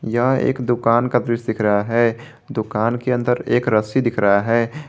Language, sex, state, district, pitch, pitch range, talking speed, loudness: Hindi, male, Jharkhand, Garhwa, 120 Hz, 110-125 Hz, 195 wpm, -19 LUFS